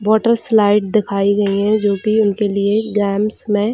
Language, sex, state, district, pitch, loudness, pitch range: Hindi, female, Bihar, Jahanabad, 210 Hz, -16 LUFS, 200-215 Hz